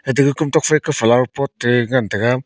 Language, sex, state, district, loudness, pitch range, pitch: Wancho, male, Arunachal Pradesh, Longding, -16 LUFS, 120-145 Hz, 130 Hz